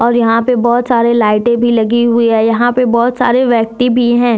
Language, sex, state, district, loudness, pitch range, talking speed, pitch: Hindi, female, Jharkhand, Deoghar, -11 LUFS, 230-245 Hz, 220 wpm, 235 Hz